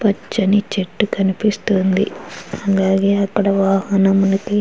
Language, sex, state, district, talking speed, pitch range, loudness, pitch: Telugu, female, Andhra Pradesh, Chittoor, 90 wpm, 195-205 Hz, -17 LUFS, 195 Hz